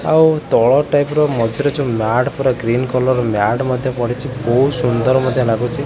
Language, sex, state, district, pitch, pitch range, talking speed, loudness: Odia, male, Odisha, Khordha, 130 Hz, 120-140 Hz, 175 wpm, -16 LUFS